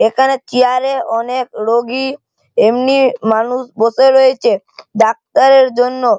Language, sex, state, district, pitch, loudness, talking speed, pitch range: Bengali, male, West Bengal, Malda, 255 Hz, -13 LUFS, 105 wpm, 230-265 Hz